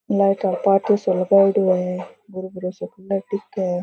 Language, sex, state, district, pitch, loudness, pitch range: Rajasthani, female, Rajasthan, Churu, 190 Hz, -20 LUFS, 185-195 Hz